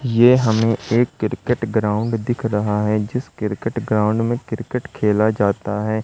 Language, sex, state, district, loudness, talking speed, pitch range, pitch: Hindi, male, Madhya Pradesh, Katni, -19 LUFS, 160 wpm, 105-120 Hz, 110 Hz